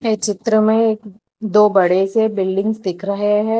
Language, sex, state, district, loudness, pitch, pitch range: Hindi, female, Telangana, Hyderabad, -16 LUFS, 210 Hz, 195-220 Hz